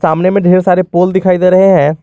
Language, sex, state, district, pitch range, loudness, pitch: Hindi, male, Jharkhand, Garhwa, 180-185 Hz, -9 LUFS, 185 Hz